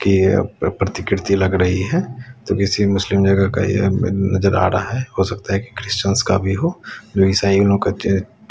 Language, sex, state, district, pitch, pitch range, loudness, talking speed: Hindi, male, Bihar, West Champaran, 100 Hz, 95-105 Hz, -18 LUFS, 190 wpm